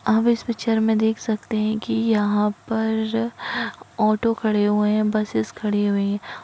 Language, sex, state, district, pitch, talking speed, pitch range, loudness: Hindi, female, Maharashtra, Pune, 220 Hz, 160 wpm, 210-225 Hz, -22 LUFS